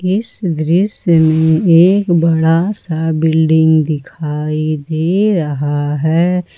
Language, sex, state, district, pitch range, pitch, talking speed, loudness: Hindi, female, Jharkhand, Ranchi, 155-175 Hz, 160 Hz, 100 wpm, -13 LUFS